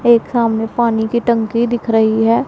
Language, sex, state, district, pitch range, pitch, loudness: Hindi, female, Punjab, Pathankot, 225-235 Hz, 230 Hz, -15 LUFS